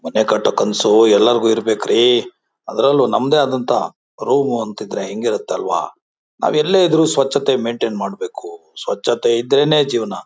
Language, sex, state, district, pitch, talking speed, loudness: Kannada, male, Karnataka, Bijapur, 195 Hz, 130 wpm, -16 LUFS